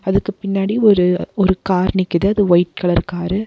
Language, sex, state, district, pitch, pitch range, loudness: Tamil, female, Tamil Nadu, Nilgiris, 190 Hz, 180-200 Hz, -16 LUFS